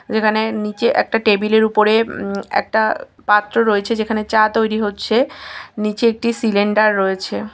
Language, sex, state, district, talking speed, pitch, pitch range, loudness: Bengali, female, West Bengal, Kolkata, 135 wpm, 220 Hz, 210-225 Hz, -17 LUFS